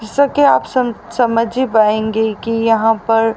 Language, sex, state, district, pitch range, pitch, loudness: Hindi, female, Haryana, Rohtak, 220-245 Hz, 225 Hz, -15 LUFS